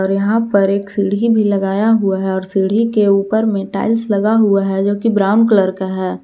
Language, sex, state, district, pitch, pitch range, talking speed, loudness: Hindi, female, Jharkhand, Palamu, 200 Hz, 195-220 Hz, 220 wpm, -15 LUFS